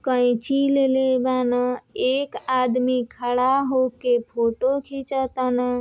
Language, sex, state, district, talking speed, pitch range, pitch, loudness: Bhojpuri, female, Uttar Pradesh, Deoria, 105 wpm, 245-265 Hz, 255 Hz, -22 LUFS